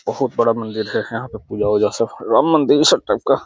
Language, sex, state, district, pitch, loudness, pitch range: Hindi, male, Bihar, Gaya, 110 Hz, -17 LUFS, 105-115 Hz